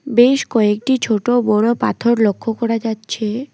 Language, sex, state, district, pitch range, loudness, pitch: Bengali, female, West Bengal, Alipurduar, 215-245 Hz, -16 LUFS, 230 Hz